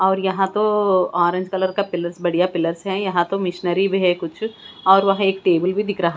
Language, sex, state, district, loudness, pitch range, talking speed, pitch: Hindi, female, Bihar, West Champaran, -19 LUFS, 175-195 Hz, 235 wpm, 190 Hz